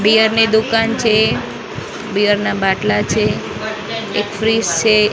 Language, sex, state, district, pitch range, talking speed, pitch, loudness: Gujarati, female, Maharashtra, Mumbai Suburban, 205-225 Hz, 130 wpm, 215 Hz, -15 LUFS